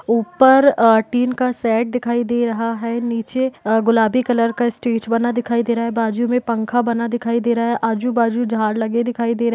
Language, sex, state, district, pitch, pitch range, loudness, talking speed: Hindi, female, Bihar, East Champaran, 235 Hz, 230-240 Hz, -18 LUFS, 225 wpm